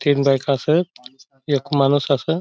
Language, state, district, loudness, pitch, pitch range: Bhili, Maharashtra, Dhule, -19 LUFS, 140 Hz, 135-150 Hz